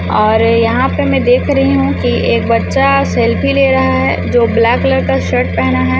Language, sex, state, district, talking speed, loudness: Hindi, female, Chhattisgarh, Raipur, 210 wpm, -12 LUFS